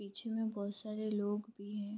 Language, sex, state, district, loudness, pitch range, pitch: Hindi, female, Bihar, Vaishali, -40 LUFS, 205-215 Hz, 210 Hz